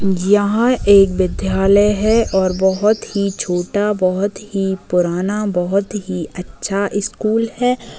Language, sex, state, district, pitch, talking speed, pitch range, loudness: Hindi, female, Bihar, Bhagalpur, 200 Hz, 120 wpm, 190-210 Hz, -16 LUFS